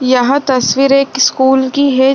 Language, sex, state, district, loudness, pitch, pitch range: Hindi, female, Bihar, Saran, -11 LUFS, 265 Hz, 260-275 Hz